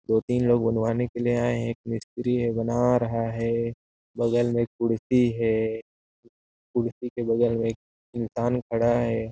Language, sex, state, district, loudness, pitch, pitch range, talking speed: Hindi, male, Chhattisgarh, Sarguja, -25 LUFS, 115 Hz, 115-120 Hz, 165 wpm